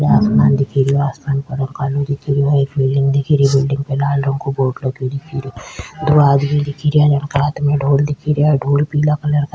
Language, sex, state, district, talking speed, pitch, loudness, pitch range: Rajasthani, female, Rajasthan, Nagaur, 230 wpm, 140 Hz, -16 LUFS, 135-145 Hz